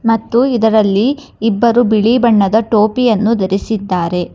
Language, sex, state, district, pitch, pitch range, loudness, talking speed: Kannada, female, Karnataka, Bangalore, 220 Hz, 205-235 Hz, -13 LUFS, 95 wpm